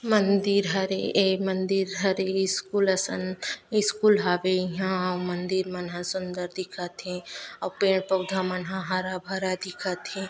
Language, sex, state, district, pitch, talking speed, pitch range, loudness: Chhattisgarhi, female, Chhattisgarh, Bastar, 190 Hz, 150 wpm, 185-195 Hz, -26 LUFS